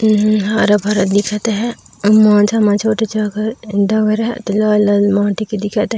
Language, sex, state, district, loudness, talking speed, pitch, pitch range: Chhattisgarhi, female, Chhattisgarh, Raigarh, -14 LUFS, 190 wpm, 210 Hz, 205-220 Hz